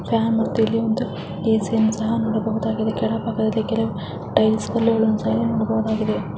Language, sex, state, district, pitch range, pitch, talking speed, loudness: Kannada, female, Karnataka, Chamarajanagar, 220-225 Hz, 220 Hz, 160 wpm, -21 LUFS